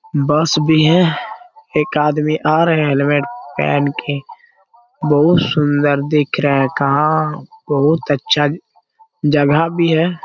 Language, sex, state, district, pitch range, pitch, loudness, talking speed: Hindi, male, Bihar, Jamui, 145-170 Hz, 150 Hz, -15 LUFS, 135 wpm